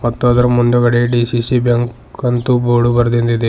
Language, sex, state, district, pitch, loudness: Kannada, male, Karnataka, Bidar, 120 Hz, -14 LUFS